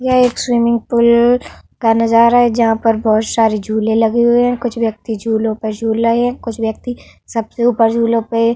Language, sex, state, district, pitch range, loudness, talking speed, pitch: Hindi, female, Uttar Pradesh, Varanasi, 225-240 Hz, -14 LUFS, 205 wpm, 230 Hz